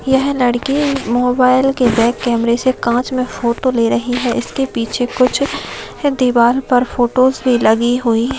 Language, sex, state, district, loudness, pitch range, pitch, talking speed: Hindi, female, Maharashtra, Nagpur, -15 LUFS, 240-260 Hz, 250 Hz, 165 wpm